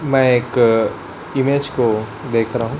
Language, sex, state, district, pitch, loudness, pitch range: Hindi, male, Chhattisgarh, Raipur, 125 Hz, -17 LUFS, 115-135 Hz